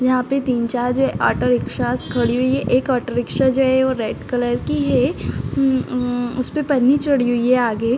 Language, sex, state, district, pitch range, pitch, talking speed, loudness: Hindi, female, Uttar Pradesh, Gorakhpur, 235-260 Hz, 250 Hz, 210 wpm, -19 LUFS